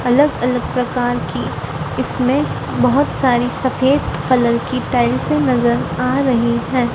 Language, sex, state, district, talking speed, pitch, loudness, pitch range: Hindi, female, Madhya Pradesh, Dhar, 130 wpm, 250 Hz, -17 LUFS, 240-255 Hz